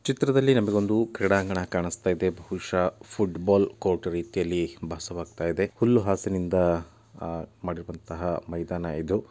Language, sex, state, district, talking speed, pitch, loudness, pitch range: Kannada, male, Karnataka, Dakshina Kannada, 95 wpm, 90 Hz, -27 LUFS, 85-105 Hz